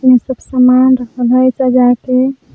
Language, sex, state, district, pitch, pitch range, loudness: Magahi, female, Jharkhand, Palamu, 255 Hz, 250-260 Hz, -11 LUFS